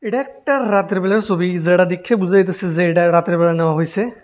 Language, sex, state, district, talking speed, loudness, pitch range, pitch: Bengali, male, Tripura, West Tripura, 210 wpm, -16 LUFS, 175-210 Hz, 185 Hz